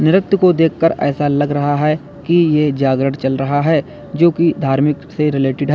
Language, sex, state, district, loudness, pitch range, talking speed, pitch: Hindi, male, Uttar Pradesh, Lalitpur, -15 LUFS, 140-165 Hz, 200 wpm, 145 Hz